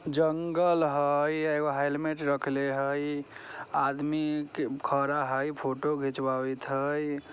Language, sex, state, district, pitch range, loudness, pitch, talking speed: Maithili, female, Bihar, Vaishali, 140-150 Hz, -29 LUFS, 145 Hz, 105 wpm